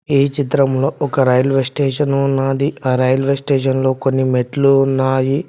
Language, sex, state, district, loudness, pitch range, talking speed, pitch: Telugu, male, Telangana, Mahabubabad, -16 LUFS, 130-140 Hz, 120 wpm, 135 Hz